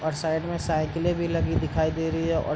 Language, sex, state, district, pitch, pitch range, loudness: Hindi, male, Bihar, Gopalganj, 160 Hz, 155-165 Hz, -26 LUFS